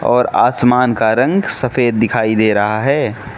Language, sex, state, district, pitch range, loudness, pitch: Hindi, male, Mizoram, Aizawl, 110-130 Hz, -14 LUFS, 120 Hz